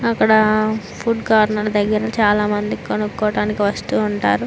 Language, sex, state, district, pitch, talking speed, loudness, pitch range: Telugu, female, Andhra Pradesh, Chittoor, 210 Hz, 120 wpm, -18 LUFS, 205-215 Hz